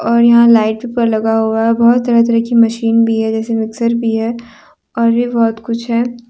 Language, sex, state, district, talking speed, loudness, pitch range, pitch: Hindi, female, Jharkhand, Deoghar, 220 wpm, -13 LUFS, 225-235 Hz, 230 Hz